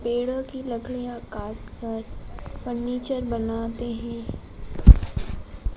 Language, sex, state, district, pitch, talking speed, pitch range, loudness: Hindi, male, Madhya Pradesh, Dhar, 240 Hz, 75 wpm, 230-250 Hz, -26 LUFS